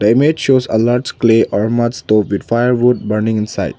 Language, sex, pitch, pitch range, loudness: English, male, 115 Hz, 105-125 Hz, -14 LUFS